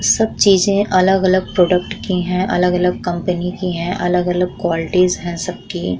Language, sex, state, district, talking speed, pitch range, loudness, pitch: Hindi, female, Uttar Pradesh, Muzaffarnagar, 140 wpm, 180-185 Hz, -16 LUFS, 180 Hz